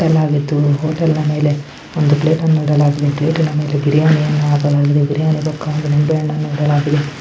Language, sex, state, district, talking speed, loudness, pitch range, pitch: Kannada, male, Karnataka, Dharwad, 125 wpm, -15 LUFS, 145-155 Hz, 150 Hz